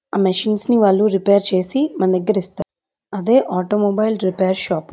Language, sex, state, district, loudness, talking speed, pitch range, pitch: Telugu, female, Andhra Pradesh, Chittoor, -17 LUFS, 170 wpm, 185-215 Hz, 200 Hz